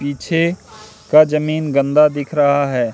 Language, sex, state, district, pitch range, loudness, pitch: Hindi, male, Madhya Pradesh, Katni, 140-155 Hz, -15 LUFS, 150 Hz